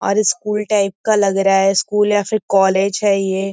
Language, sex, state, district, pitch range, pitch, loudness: Hindi, female, Uttar Pradesh, Gorakhpur, 195-210 Hz, 200 Hz, -16 LUFS